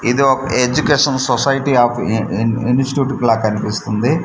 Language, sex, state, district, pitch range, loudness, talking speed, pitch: Telugu, male, Andhra Pradesh, Manyam, 115-135 Hz, -15 LUFS, 140 wpm, 125 Hz